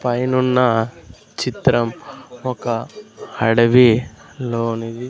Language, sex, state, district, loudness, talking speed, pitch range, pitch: Telugu, male, Andhra Pradesh, Sri Satya Sai, -18 LUFS, 60 wpm, 115-125 Hz, 120 Hz